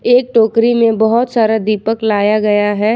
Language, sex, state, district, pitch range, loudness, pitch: Hindi, female, Jharkhand, Ranchi, 215-230 Hz, -13 LUFS, 220 Hz